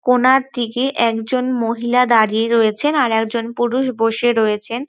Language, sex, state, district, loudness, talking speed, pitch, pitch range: Bengali, female, West Bengal, North 24 Parganas, -17 LUFS, 125 wpm, 235 Hz, 225-255 Hz